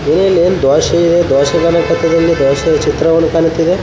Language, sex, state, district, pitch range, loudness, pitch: Kannada, male, Karnataka, Raichur, 160-170 Hz, -11 LUFS, 165 Hz